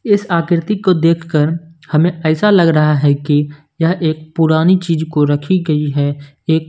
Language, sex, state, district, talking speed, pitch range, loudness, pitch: Hindi, male, Punjab, Kapurthala, 170 wpm, 150-170 Hz, -14 LUFS, 160 Hz